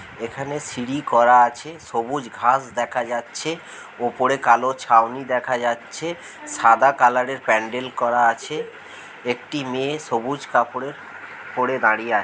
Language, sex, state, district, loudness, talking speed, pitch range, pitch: Bengali, male, West Bengal, Jhargram, -21 LUFS, 130 wpm, 120-150 Hz, 130 Hz